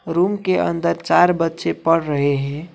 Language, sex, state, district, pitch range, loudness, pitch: Hindi, male, West Bengal, Alipurduar, 140-175 Hz, -18 LUFS, 165 Hz